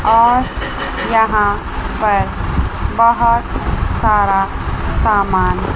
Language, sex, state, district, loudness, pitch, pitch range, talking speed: Hindi, female, Chandigarh, Chandigarh, -15 LUFS, 215 Hz, 195-230 Hz, 60 wpm